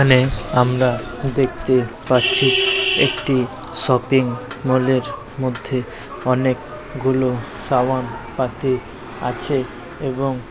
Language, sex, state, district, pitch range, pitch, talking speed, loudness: Bengali, male, West Bengal, Malda, 125-135 Hz, 130 Hz, 85 wpm, -19 LUFS